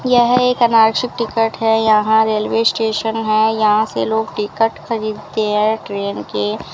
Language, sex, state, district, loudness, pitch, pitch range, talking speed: Hindi, female, Rajasthan, Bikaner, -16 LUFS, 220 Hz, 210-225 Hz, 140 wpm